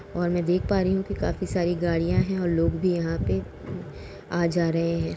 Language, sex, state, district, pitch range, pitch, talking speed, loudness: Hindi, female, Uttar Pradesh, Jalaun, 165-180 Hz, 175 Hz, 230 wpm, -25 LUFS